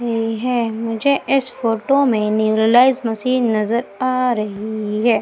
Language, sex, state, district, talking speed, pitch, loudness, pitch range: Hindi, female, Madhya Pradesh, Umaria, 140 wpm, 230 Hz, -18 LUFS, 220-255 Hz